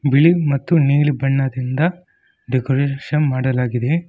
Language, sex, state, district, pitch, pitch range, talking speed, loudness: Kannada, male, Karnataka, Koppal, 140 Hz, 130-150 Hz, 90 wpm, -18 LUFS